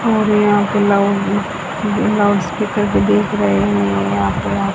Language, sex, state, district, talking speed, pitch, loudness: Hindi, female, Haryana, Jhajjar, 140 wpm, 200 Hz, -16 LUFS